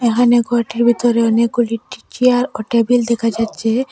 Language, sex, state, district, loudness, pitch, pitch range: Bengali, female, Assam, Hailakandi, -16 LUFS, 235 Hz, 230-245 Hz